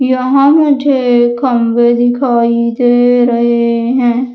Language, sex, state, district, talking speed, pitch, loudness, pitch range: Hindi, female, Madhya Pradesh, Umaria, 95 wpm, 245 Hz, -10 LUFS, 240-255 Hz